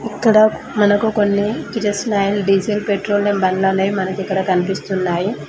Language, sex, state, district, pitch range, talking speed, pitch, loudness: Telugu, female, Telangana, Mahabubabad, 190-210 Hz, 100 wpm, 205 Hz, -17 LUFS